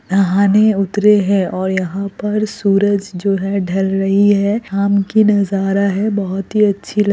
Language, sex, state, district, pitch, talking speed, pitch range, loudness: Hindi, female, Bihar, Kishanganj, 200 Hz, 175 wpm, 195-205 Hz, -15 LUFS